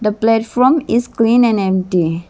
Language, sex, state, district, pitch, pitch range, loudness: English, female, Arunachal Pradesh, Lower Dibang Valley, 225 Hz, 190-235 Hz, -14 LUFS